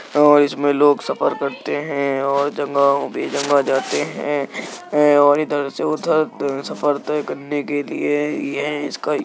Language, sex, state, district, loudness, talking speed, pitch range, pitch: Hindi, male, Uttar Pradesh, Jyotiba Phule Nagar, -19 LUFS, 170 wpm, 140-150 Hz, 145 Hz